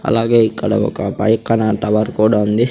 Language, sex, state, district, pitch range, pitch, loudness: Telugu, male, Andhra Pradesh, Sri Satya Sai, 105-115 Hz, 110 Hz, -15 LUFS